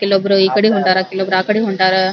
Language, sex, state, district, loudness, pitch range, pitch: Kannada, female, Karnataka, Belgaum, -14 LUFS, 190-200 Hz, 190 Hz